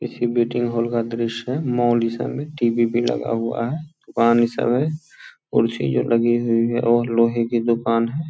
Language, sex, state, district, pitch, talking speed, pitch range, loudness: Hindi, male, Bihar, Purnia, 120 Hz, 215 wpm, 115-120 Hz, -20 LUFS